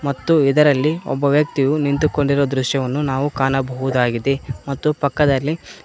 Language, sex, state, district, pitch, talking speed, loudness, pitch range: Kannada, male, Karnataka, Koppal, 140 Hz, 105 wpm, -18 LUFS, 135-150 Hz